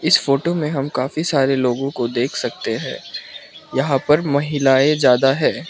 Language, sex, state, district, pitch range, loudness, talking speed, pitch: Hindi, male, Mizoram, Aizawl, 135-150 Hz, -18 LUFS, 170 wpm, 140 Hz